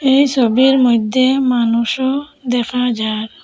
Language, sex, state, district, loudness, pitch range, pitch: Bengali, female, Assam, Hailakandi, -15 LUFS, 235-265 Hz, 250 Hz